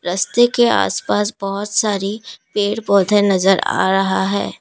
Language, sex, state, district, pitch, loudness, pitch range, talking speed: Hindi, female, Assam, Kamrup Metropolitan, 200 Hz, -16 LUFS, 195-210 Hz, 145 wpm